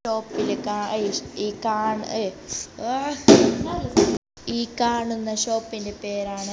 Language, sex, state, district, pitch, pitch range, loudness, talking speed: Malayalam, female, Kerala, Kasaragod, 220 Hz, 205-230 Hz, -23 LUFS, 100 wpm